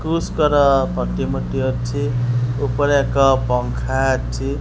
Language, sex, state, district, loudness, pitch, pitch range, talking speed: Odia, male, Odisha, Khordha, -19 LUFS, 135 Hz, 125-140 Hz, 90 wpm